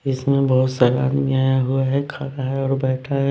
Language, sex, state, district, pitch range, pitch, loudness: Hindi, male, Haryana, Rohtak, 130-135 Hz, 135 Hz, -20 LUFS